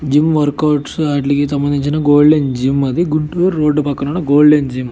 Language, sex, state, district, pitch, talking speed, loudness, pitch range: Telugu, male, Andhra Pradesh, Guntur, 145 Hz, 195 wpm, -14 LUFS, 140-155 Hz